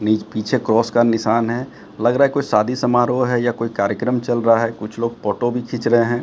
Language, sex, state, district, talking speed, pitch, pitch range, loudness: Hindi, male, Bihar, Katihar, 240 wpm, 120 Hz, 110-120 Hz, -18 LUFS